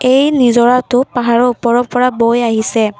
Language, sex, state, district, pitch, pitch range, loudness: Assamese, female, Assam, Kamrup Metropolitan, 245 Hz, 235-250 Hz, -12 LUFS